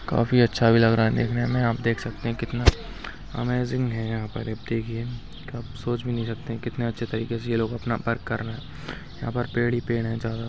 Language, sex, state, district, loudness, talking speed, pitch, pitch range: Hindi, male, Rajasthan, Nagaur, -25 LUFS, 235 wpm, 115 Hz, 115-120 Hz